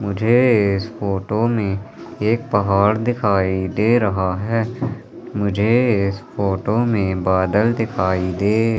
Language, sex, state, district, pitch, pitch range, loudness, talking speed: Hindi, male, Madhya Pradesh, Katni, 105 Hz, 95-115 Hz, -19 LUFS, 115 wpm